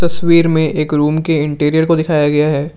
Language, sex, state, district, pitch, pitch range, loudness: Hindi, male, Assam, Kamrup Metropolitan, 155 Hz, 150-165 Hz, -13 LUFS